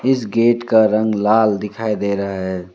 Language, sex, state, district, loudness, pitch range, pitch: Hindi, male, West Bengal, Alipurduar, -17 LUFS, 100-115 Hz, 105 Hz